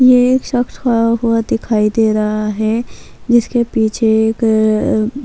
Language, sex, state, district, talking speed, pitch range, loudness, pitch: Urdu, female, Bihar, Kishanganj, 135 wpm, 215-240 Hz, -14 LUFS, 225 Hz